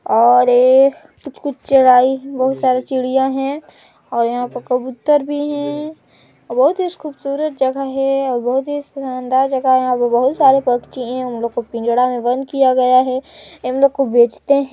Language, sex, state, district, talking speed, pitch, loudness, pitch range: Hindi, female, Chhattisgarh, Balrampur, 175 wpm, 260 Hz, -16 LUFS, 250-275 Hz